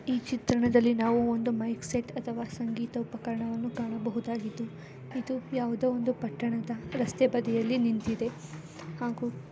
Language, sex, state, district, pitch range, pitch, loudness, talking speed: Kannada, female, Karnataka, Dakshina Kannada, 230-245 Hz, 235 Hz, -31 LUFS, 105 wpm